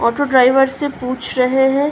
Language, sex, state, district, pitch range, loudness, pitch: Hindi, female, Uttar Pradesh, Ghazipur, 255-280 Hz, -15 LUFS, 265 Hz